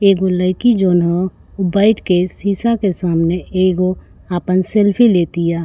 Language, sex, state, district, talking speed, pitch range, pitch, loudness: Bhojpuri, female, Uttar Pradesh, Gorakhpur, 150 wpm, 180-200 Hz, 185 Hz, -15 LUFS